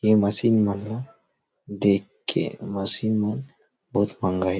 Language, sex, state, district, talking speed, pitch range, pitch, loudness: Chhattisgarhi, male, Chhattisgarh, Rajnandgaon, 145 wpm, 100-110 Hz, 105 Hz, -24 LUFS